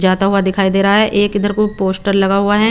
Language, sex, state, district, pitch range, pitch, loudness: Hindi, female, Chandigarh, Chandigarh, 195-205 Hz, 200 Hz, -14 LUFS